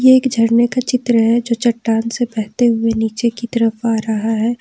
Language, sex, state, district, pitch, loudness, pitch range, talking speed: Hindi, female, Jharkhand, Ranchi, 230 Hz, -16 LUFS, 225-240 Hz, 210 wpm